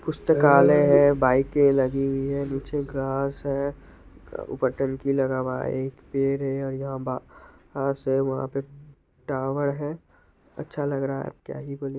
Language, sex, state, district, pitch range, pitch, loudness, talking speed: Hindi, male, Bihar, Madhepura, 135-140 Hz, 135 Hz, -24 LUFS, 170 wpm